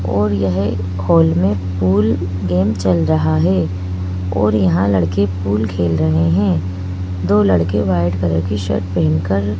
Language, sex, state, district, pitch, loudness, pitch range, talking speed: Hindi, male, Madhya Pradesh, Bhopal, 90 Hz, -16 LUFS, 90-100 Hz, 155 wpm